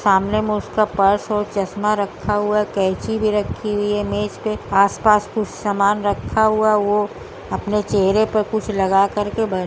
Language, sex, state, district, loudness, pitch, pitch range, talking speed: Hindi, female, Uttar Pradesh, Budaun, -19 LUFS, 210 Hz, 200-215 Hz, 190 wpm